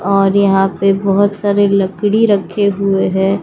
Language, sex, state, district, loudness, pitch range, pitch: Hindi, female, Bihar, West Champaran, -13 LUFS, 195-205 Hz, 195 Hz